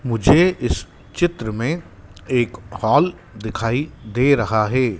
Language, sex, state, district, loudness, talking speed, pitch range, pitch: Hindi, male, Madhya Pradesh, Dhar, -19 LUFS, 120 wpm, 105-140 Hz, 115 Hz